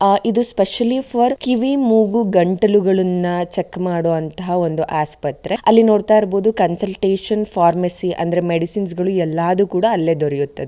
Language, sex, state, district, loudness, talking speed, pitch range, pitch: Kannada, female, Karnataka, Shimoga, -17 LUFS, 135 wpm, 170-215 Hz, 190 Hz